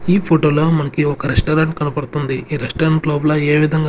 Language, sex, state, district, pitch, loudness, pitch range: Telugu, male, Andhra Pradesh, Sri Satya Sai, 150 Hz, -16 LUFS, 145-160 Hz